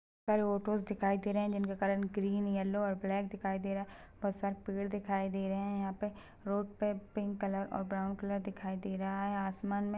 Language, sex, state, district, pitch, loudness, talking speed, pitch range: Hindi, female, Chhattisgarh, Balrampur, 200 Hz, -36 LUFS, 235 wpm, 195-205 Hz